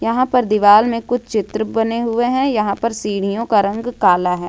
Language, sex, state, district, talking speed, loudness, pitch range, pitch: Hindi, female, Jharkhand, Ranchi, 215 wpm, -16 LUFS, 205-235 Hz, 220 Hz